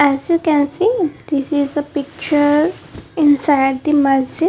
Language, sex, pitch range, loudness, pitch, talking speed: English, female, 285-310 Hz, -16 LUFS, 290 Hz, 160 wpm